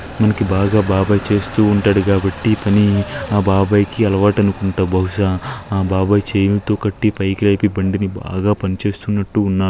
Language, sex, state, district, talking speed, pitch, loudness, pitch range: Telugu, male, Andhra Pradesh, Krishna, 160 wpm, 100 Hz, -16 LUFS, 95-105 Hz